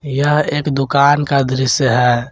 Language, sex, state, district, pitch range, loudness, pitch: Hindi, male, Jharkhand, Garhwa, 130-145 Hz, -14 LUFS, 140 Hz